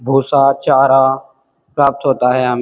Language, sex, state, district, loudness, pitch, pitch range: Hindi, male, Uttar Pradesh, Muzaffarnagar, -13 LUFS, 135 Hz, 130-135 Hz